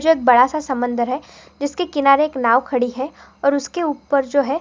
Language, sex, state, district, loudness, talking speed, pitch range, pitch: Hindi, female, Maharashtra, Pune, -18 LUFS, 220 wpm, 255-300 Hz, 280 Hz